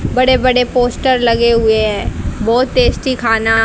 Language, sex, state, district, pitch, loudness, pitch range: Hindi, female, Haryana, Jhajjar, 245 Hz, -13 LUFS, 225-255 Hz